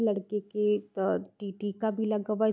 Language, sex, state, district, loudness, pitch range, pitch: Hindi, female, Uttar Pradesh, Deoria, -31 LUFS, 205-215 Hz, 210 Hz